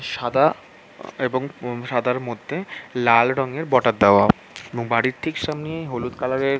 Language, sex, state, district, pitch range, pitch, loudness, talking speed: Bengali, male, West Bengal, Jhargram, 120-135 Hz, 125 Hz, -21 LUFS, 145 wpm